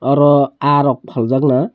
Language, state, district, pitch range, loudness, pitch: Kokborok, Tripura, Dhalai, 130-145 Hz, -14 LUFS, 140 Hz